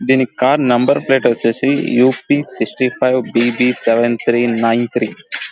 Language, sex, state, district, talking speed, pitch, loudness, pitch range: Telugu, male, Andhra Pradesh, Guntur, 175 wpm, 120 Hz, -15 LUFS, 120-130 Hz